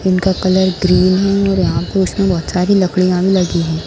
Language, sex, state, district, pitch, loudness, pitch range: Hindi, female, Bihar, Darbhanga, 185 Hz, -14 LUFS, 180-190 Hz